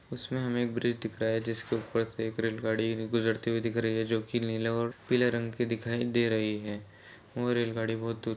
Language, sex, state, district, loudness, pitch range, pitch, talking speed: Hindi, male, Chhattisgarh, Balrampur, -31 LUFS, 110-120 Hz, 115 Hz, 235 wpm